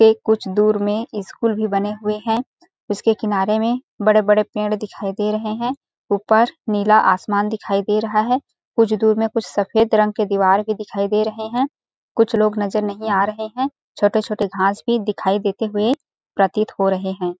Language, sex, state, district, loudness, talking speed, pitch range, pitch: Hindi, female, Chhattisgarh, Balrampur, -19 LUFS, 190 wpm, 205-220 Hz, 215 Hz